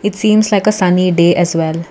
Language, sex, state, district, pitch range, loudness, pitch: English, female, Karnataka, Bangalore, 170-205 Hz, -12 LUFS, 180 Hz